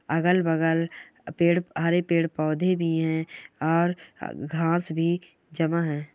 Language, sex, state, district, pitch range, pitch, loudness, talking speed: Hindi, male, West Bengal, Purulia, 160-170 Hz, 165 Hz, -25 LUFS, 115 wpm